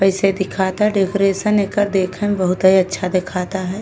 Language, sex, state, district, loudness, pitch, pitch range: Bhojpuri, female, Uttar Pradesh, Deoria, -17 LUFS, 190 Hz, 185-200 Hz